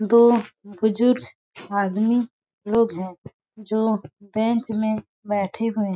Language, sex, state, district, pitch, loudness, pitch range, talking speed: Hindi, female, Chhattisgarh, Balrampur, 215 Hz, -22 LUFS, 200-230 Hz, 110 wpm